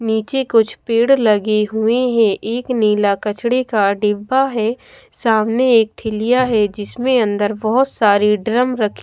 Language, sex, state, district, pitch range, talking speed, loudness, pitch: Hindi, female, Odisha, Khordha, 210-250 Hz, 145 wpm, -16 LUFS, 225 Hz